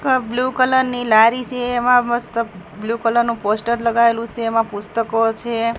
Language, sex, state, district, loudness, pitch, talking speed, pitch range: Gujarati, female, Gujarat, Gandhinagar, -18 LUFS, 235 Hz, 175 wpm, 225-245 Hz